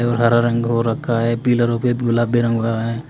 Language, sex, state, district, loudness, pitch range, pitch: Hindi, male, Uttar Pradesh, Saharanpur, -18 LUFS, 115-120 Hz, 120 Hz